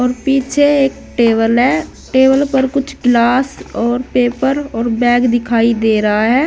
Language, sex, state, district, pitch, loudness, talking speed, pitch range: Hindi, female, Uttar Pradesh, Saharanpur, 250 Hz, -14 LUFS, 150 wpm, 235-270 Hz